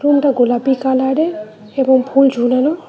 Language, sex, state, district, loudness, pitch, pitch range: Bengali, female, West Bengal, Cooch Behar, -14 LUFS, 265 Hz, 250-285 Hz